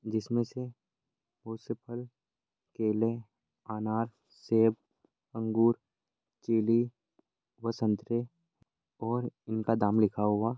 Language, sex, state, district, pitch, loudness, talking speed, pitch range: Angika, male, Bihar, Madhepura, 115 Hz, -31 LUFS, 95 wpm, 110-120 Hz